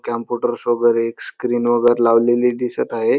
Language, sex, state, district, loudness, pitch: Marathi, male, Maharashtra, Dhule, -18 LUFS, 120 Hz